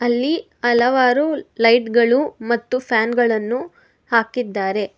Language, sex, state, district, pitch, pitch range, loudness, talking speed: Kannada, female, Karnataka, Bangalore, 240 Hz, 230-255 Hz, -18 LUFS, 95 wpm